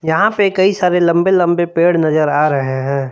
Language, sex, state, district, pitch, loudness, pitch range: Hindi, male, Jharkhand, Palamu, 170 Hz, -14 LUFS, 150-180 Hz